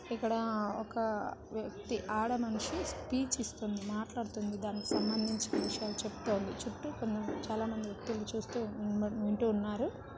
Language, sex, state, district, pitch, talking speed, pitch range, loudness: Telugu, female, Telangana, Nalgonda, 220 Hz, 110 wpm, 210-225 Hz, -36 LUFS